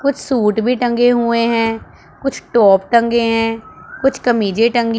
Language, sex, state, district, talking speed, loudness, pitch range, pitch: Hindi, male, Punjab, Pathankot, 155 wpm, -15 LUFS, 225-245 Hz, 235 Hz